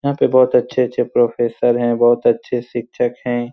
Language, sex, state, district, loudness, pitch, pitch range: Hindi, male, Bihar, Supaul, -16 LUFS, 120 Hz, 120-125 Hz